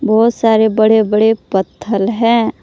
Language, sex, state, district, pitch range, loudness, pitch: Hindi, female, Jharkhand, Palamu, 215-230 Hz, -13 LUFS, 220 Hz